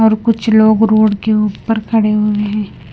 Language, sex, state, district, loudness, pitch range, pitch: Hindi, female, Punjab, Kapurthala, -13 LUFS, 210-220 Hz, 215 Hz